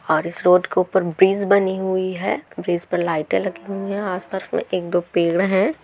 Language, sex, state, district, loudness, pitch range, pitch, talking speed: Hindi, female, Bihar, Gaya, -20 LUFS, 175-190 Hz, 185 Hz, 225 wpm